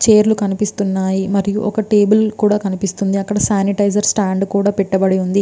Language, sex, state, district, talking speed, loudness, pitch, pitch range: Telugu, female, Andhra Pradesh, Visakhapatnam, 155 wpm, -16 LUFS, 200 Hz, 195-210 Hz